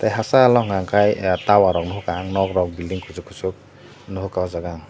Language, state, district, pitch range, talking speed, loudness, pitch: Kokborok, Tripura, Dhalai, 90-105 Hz, 210 wpm, -20 LUFS, 95 Hz